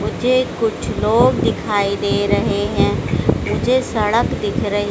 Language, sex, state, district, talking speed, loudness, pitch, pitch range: Hindi, female, Madhya Pradesh, Dhar, 135 wpm, -17 LUFS, 220 Hz, 205-255 Hz